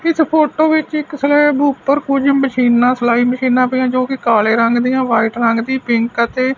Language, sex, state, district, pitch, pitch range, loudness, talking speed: Punjabi, male, Punjab, Fazilka, 255 Hz, 240-285 Hz, -14 LUFS, 180 wpm